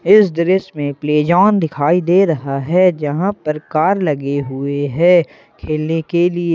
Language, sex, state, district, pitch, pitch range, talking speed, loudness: Hindi, male, Jharkhand, Ranchi, 165 Hz, 145-180 Hz, 165 wpm, -15 LUFS